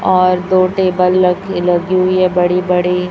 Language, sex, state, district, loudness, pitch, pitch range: Hindi, male, Chhattisgarh, Raipur, -13 LUFS, 185 Hz, 180-185 Hz